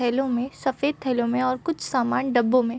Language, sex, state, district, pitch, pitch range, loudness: Hindi, female, Bihar, Gopalganj, 255 Hz, 245-265 Hz, -24 LUFS